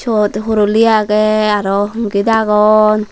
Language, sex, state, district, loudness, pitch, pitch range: Chakma, female, Tripura, Dhalai, -12 LUFS, 215 Hz, 210-220 Hz